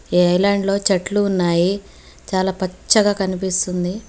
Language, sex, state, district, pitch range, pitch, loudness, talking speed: Telugu, female, Telangana, Hyderabad, 180-200 Hz, 190 Hz, -18 LUFS, 100 wpm